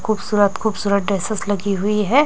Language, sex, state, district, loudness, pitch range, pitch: Hindi, female, Chhattisgarh, Raipur, -19 LUFS, 200-215 Hz, 205 Hz